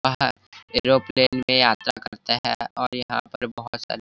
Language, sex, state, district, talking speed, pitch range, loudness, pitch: Hindi, male, Chhattisgarh, Bilaspur, 160 wpm, 125-130 Hz, -22 LUFS, 125 Hz